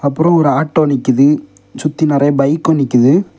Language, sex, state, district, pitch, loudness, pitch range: Tamil, male, Tamil Nadu, Kanyakumari, 145 Hz, -13 LUFS, 140-160 Hz